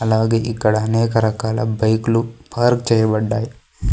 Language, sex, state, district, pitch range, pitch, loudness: Telugu, male, Andhra Pradesh, Sri Satya Sai, 110-115 Hz, 110 Hz, -18 LUFS